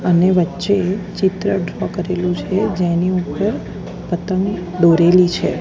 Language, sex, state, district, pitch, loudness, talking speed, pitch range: Gujarati, female, Gujarat, Gandhinagar, 180 Hz, -17 LUFS, 130 wpm, 180-190 Hz